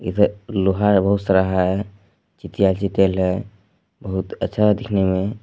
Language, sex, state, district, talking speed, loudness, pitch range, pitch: Hindi, male, Jharkhand, Palamu, 145 wpm, -19 LUFS, 95-100 Hz, 100 Hz